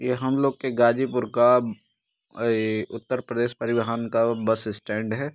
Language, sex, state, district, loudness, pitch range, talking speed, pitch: Hindi, male, Uttar Pradesh, Ghazipur, -24 LUFS, 110-125 Hz, 145 wpm, 115 Hz